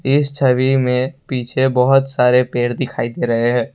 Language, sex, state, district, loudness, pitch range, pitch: Hindi, male, Assam, Kamrup Metropolitan, -16 LUFS, 125-135 Hz, 130 Hz